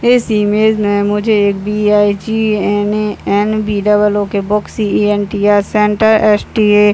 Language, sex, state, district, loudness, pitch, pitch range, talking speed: Hindi, male, Bihar, Purnia, -13 LUFS, 210 Hz, 205-215 Hz, 130 wpm